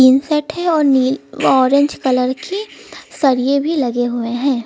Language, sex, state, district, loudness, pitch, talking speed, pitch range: Hindi, female, Uttar Pradesh, Lucknow, -16 LUFS, 270 Hz, 155 wpm, 255-295 Hz